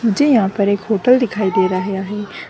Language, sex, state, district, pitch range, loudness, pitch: Hindi, female, Bihar, Gaya, 195-230 Hz, -16 LUFS, 205 Hz